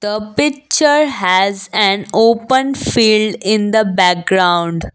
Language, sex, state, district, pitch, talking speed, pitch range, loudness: English, female, Assam, Kamrup Metropolitan, 215 Hz, 110 wpm, 190-230 Hz, -13 LUFS